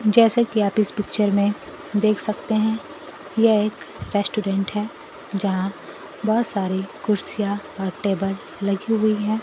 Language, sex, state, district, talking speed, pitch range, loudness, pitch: Hindi, female, Bihar, Kaimur, 140 wpm, 200-220 Hz, -22 LUFS, 210 Hz